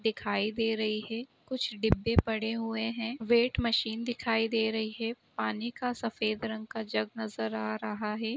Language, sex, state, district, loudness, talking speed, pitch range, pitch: Hindi, female, Uttar Pradesh, Etah, -31 LUFS, 180 wpm, 215-230 Hz, 225 Hz